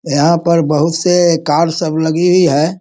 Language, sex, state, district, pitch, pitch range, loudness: Hindi, male, Bihar, Sitamarhi, 165 Hz, 160-170 Hz, -12 LUFS